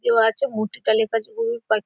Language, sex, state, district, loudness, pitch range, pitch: Bengali, female, West Bengal, Dakshin Dinajpur, -22 LUFS, 220-230 Hz, 225 Hz